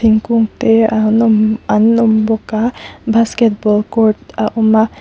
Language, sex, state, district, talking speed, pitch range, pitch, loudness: Mizo, female, Mizoram, Aizawl, 145 wpm, 215-230 Hz, 220 Hz, -13 LUFS